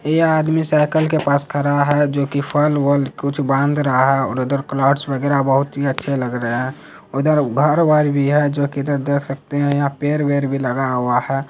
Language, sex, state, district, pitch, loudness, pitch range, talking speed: Hindi, male, Bihar, Araria, 140 Hz, -18 LUFS, 135-145 Hz, 220 wpm